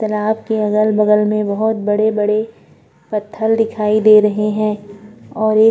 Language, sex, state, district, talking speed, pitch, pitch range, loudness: Hindi, female, Uttarakhand, Tehri Garhwal, 155 wpm, 215 Hz, 210-220 Hz, -15 LUFS